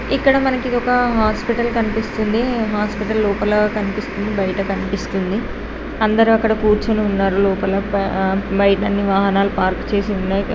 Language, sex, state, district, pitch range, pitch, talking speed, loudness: Telugu, female, Andhra Pradesh, Srikakulam, 195-220 Hz, 210 Hz, 125 wpm, -18 LUFS